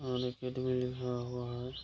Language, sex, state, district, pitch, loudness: Hindi, male, Bihar, Kishanganj, 125 Hz, -37 LUFS